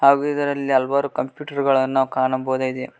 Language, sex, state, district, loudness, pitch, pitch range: Kannada, male, Karnataka, Koppal, -21 LUFS, 135 Hz, 130-140 Hz